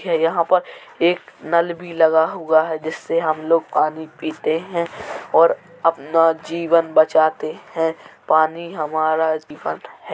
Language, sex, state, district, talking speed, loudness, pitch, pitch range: Hindi, male, Uttar Pradesh, Jalaun, 140 wpm, -19 LUFS, 160 Hz, 155-170 Hz